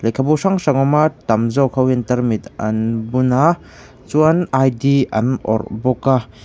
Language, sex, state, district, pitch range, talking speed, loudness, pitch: Mizo, male, Mizoram, Aizawl, 115-140 Hz, 205 wpm, -17 LUFS, 130 Hz